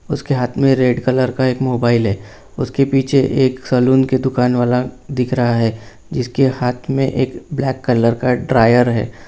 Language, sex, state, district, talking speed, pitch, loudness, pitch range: Hindi, male, Bihar, Jamui, 175 wpm, 125 Hz, -16 LUFS, 120-130 Hz